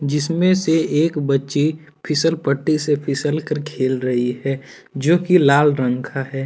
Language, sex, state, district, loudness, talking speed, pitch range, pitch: Hindi, male, Jharkhand, Deoghar, -19 LUFS, 175 wpm, 135-155 Hz, 145 Hz